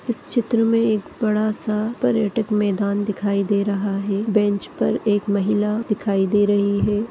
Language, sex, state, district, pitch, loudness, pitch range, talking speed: Hindi, female, Maharashtra, Nagpur, 210 Hz, -20 LUFS, 200-220 Hz, 170 wpm